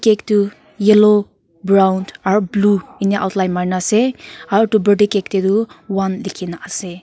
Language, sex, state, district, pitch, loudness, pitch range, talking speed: Nagamese, female, Nagaland, Kohima, 200 Hz, -16 LUFS, 190-210 Hz, 155 wpm